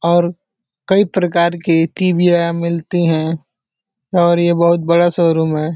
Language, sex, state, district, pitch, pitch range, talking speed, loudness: Hindi, male, Uttar Pradesh, Deoria, 170 Hz, 165-175 Hz, 135 wpm, -14 LUFS